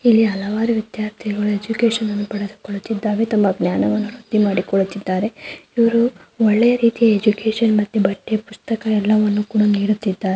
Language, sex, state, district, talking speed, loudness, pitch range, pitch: Kannada, female, Karnataka, Mysore, 115 wpm, -18 LUFS, 205-225 Hz, 215 Hz